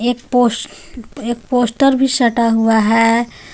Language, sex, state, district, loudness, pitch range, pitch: Hindi, female, Jharkhand, Garhwa, -15 LUFS, 230-245 Hz, 240 Hz